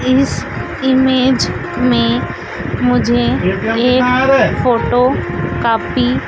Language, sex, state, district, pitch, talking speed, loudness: Hindi, female, Madhya Pradesh, Dhar, 185 Hz, 65 wpm, -14 LUFS